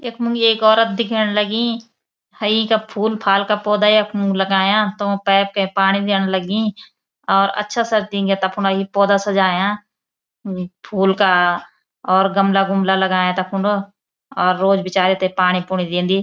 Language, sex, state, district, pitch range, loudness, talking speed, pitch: Garhwali, female, Uttarakhand, Uttarkashi, 190-210 Hz, -17 LUFS, 140 wpm, 195 Hz